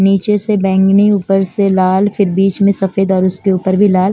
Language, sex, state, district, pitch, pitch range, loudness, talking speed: Hindi, female, Chandigarh, Chandigarh, 195 Hz, 190-200 Hz, -12 LUFS, 220 wpm